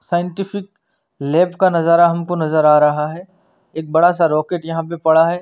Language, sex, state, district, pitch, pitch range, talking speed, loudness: Hindi, male, Chandigarh, Chandigarh, 170 Hz, 160-180 Hz, 190 wpm, -16 LUFS